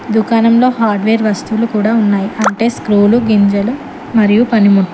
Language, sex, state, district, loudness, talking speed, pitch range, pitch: Telugu, female, Telangana, Mahabubabad, -12 LUFS, 120 wpm, 205-230 Hz, 220 Hz